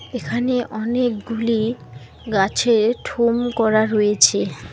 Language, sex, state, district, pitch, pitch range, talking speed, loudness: Bengali, female, West Bengal, Alipurduar, 225 Hz, 215-240 Hz, 75 wpm, -19 LUFS